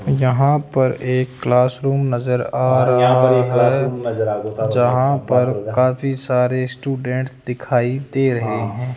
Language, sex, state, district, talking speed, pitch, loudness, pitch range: Hindi, male, Rajasthan, Jaipur, 120 wpm, 125 Hz, -18 LUFS, 125-130 Hz